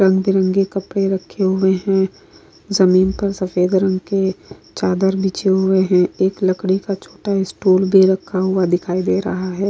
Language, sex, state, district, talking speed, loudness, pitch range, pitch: Hindi, female, Maharashtra, Aurangabad, 165 wpm, -17 LUFS, 185-195 Hz, 190 Hz